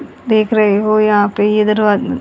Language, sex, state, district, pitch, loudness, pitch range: Hindi, female, Haryana, Jhajjar, 215 Hz, -13 LUFS, 205-215 Hz